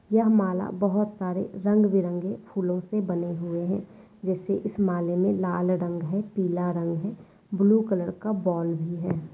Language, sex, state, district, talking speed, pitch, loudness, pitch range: Hindi, female, Bihar, Saran, 175 wpm, 190 Hz, -26 LUFS, 175-205 Hz